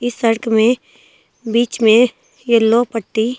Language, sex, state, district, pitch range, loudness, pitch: Hindi, female, Delhi, New Delhi, 225-240 Hz, -15 LUFS, 230 Hz